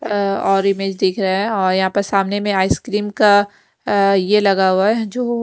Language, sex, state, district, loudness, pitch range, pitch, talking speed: Hindi, female, Punjab, Kapurthala, -16 LUFS, 195-205 Hz, 200 Hz, 210 wpm